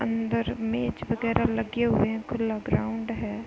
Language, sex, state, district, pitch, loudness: Hindi, female, Uttar Pradesh, Hamirpur, 220 Hz, -27 LUFS